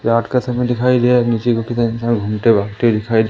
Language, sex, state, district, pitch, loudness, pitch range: Hindi, male, Madhya Pradesh, Umaria, 115 Hz, -16 LUFS, 110-120 Hz